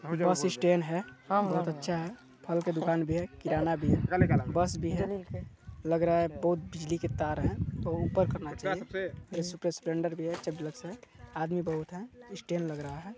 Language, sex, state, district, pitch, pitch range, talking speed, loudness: Hindi, male, Chhattisgarh, Balrampur, 170 Hz, 160-175 Hz, 195 wpm, -32 LUFS